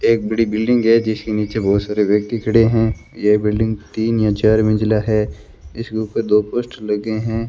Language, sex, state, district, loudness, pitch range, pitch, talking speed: Hindi, male, Rajasthan, Bikaner, -17 LUFS, 105-115 Hz, 110 Hz, 190 wpm